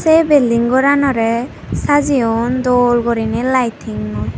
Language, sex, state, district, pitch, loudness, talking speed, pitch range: Chakma, female, Tripura, Dhalai, 245 Hz, -15 LUFS, 95 wpm, 230-275 Hz